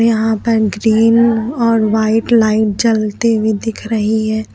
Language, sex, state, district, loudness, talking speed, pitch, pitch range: Hindi, female, Uttar Pradesh, Lucknow, -14 LUFS, 145 wpm, 220 Hz, 220-230 Hz